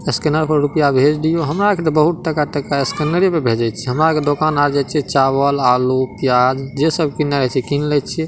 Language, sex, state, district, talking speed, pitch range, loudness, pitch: Maithili, male, Bihar, Madhepura, 215 wpm, 135-155 Hz, -16 LUFS, 145 Hz